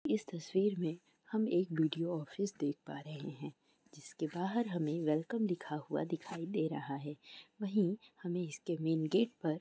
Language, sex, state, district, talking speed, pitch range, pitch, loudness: Hindi, female, West Bengal, North 24 Parganas, 170 wpm, 155-195 Hz, 170 Hz, -37 LUFS